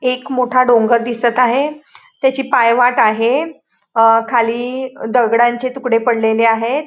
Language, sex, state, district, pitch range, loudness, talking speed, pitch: Marathi, female, Goa, North and South Goa, 230-260 Hz, -14 LUFS, 120 wpm, 245 Hz